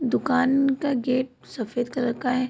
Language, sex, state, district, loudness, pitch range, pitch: Hindi, female, Bihar, Vaishali, -24 LUFS, 250-265 Hz, 255 Hz